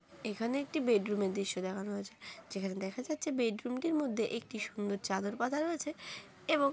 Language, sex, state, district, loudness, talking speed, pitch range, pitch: Bengali, female, West Bengal, Jhargram, -36 LUFS, 185 wpm, 200-275 Hz, 225 Hz